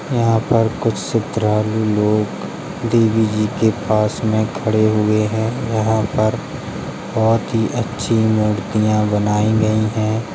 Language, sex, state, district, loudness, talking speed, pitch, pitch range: Hindi, male, Uttar Pradesh, Hamirpur, -18 LUFS, 125 wpm, 110 Hz, 105-115 Hz